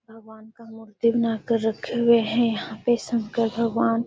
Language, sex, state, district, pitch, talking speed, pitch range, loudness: Hindi, female, Bihar, Gaya, 230 Hz, 160 wpm, 225-235 Hz, -23 LUFS